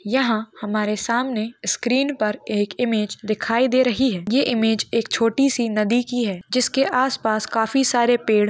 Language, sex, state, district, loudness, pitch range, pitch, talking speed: Hindi, female, Maharashtra, Dhule, -21 LUFS, 215-255 Hz, 230 Hz, 170 wpm